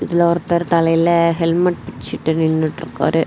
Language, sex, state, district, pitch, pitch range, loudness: Tamil, female, Tamil Nadu, Kanyakumari, 170 Hz, 160-170 Hz, -17 LUFS